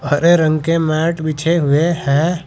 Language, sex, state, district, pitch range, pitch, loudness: Hindi, male, Uttar Pradesh, Saharanpur, 155-170 Hz, 160 Hz, -15 LUFS